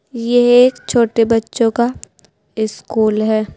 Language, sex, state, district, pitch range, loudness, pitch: Hindi, female, Uttar Pradesh, Saharanpur, 220-245 Hz, -15 LUFS, 230 Hz